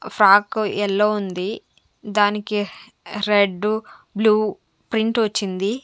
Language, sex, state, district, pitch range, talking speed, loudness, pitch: Telugu, female, Andhra Pradesh, Sri Satya Sai, 205-215 Hz, 80 wpm, -20 LUFS, 210 Hz